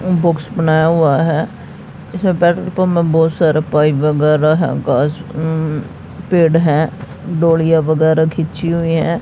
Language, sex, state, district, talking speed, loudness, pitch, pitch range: Hindi, female, Haryana, Jhajjar, 145 wpm, -14 LUFS, 160 Hz, 155-170 Hz